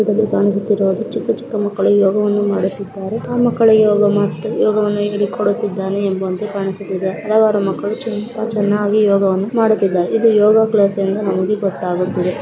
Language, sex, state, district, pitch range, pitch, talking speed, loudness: Kannada, female, Karnataka, Dakshina Kannada, 195-215 Hz, 205 Hz, 135 wpm, -16 LUFS